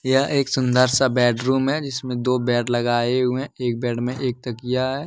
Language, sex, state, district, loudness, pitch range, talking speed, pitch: Hindi, male, Jharkhand, Deoghar, -21 LUFS, 120-130 Hz, 200 wpm, 125 Hz